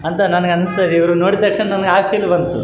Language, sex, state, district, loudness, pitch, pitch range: Kannada, male, Karnataka, Raichur, -15 LUFS, 180 Hz, 175-200 Hz